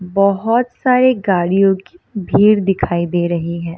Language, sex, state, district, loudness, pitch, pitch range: Hindi, female, Bihar, Samastipur, -15 LUFS, 195 Hz, 175-220 Hz